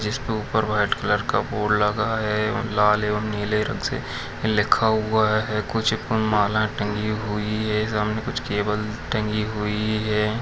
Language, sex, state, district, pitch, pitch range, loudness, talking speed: Hindi, male, Bihar, Muzaffarpur, 105 Hz, 105-110 Hz, -23 LUFS, 155 wpm